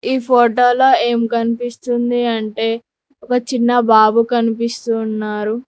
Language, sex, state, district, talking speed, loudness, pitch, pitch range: Telugu, female, Telangana, Mahabubabad, 105 wpm, -15 LUFS, 235 Hz, 225-245 Hz